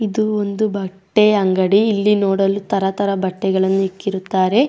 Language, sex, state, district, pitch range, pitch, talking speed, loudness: Kannada, female, Karnataka, Dakshina Kannada, 190-210 Hz, 195 Hz, 115 wpm, -17 LUFS